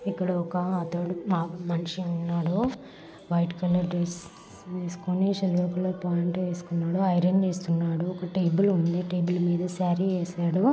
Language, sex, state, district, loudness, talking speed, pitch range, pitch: Telugu, female, Telangana, Karimnagar, -27 LUFS, 130 wpm, 175-185 Hz, 180 Hz